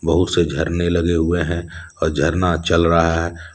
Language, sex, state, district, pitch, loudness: Hindi, male, Jharkhand, Deoghar, 85 Hz, -18 LUFS